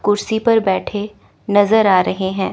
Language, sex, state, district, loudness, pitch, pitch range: Hindi, female, Chandigarh, Chandigarh, -16 LUFS, 205 Hz, 190-220 Hz